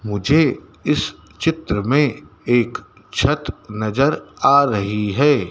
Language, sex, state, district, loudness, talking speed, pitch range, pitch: Hindi, male, Madhya Pradesh, Dhar, -19 LUFS, 110 wpm, 105-140 Hz, 115 Hz